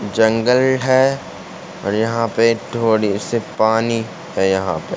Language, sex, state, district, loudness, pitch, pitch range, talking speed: Hindi, male, Uttar Pradesh, Ghazipur, -17 LUFS, 115 Hz, 105-115 Hz, 135 wpm